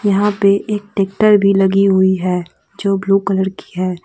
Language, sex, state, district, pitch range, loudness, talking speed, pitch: Hindi, female, Jharkhand, Deoghar, 190-200 Hz, -15 LUFS, 190 wpm, 195 Hz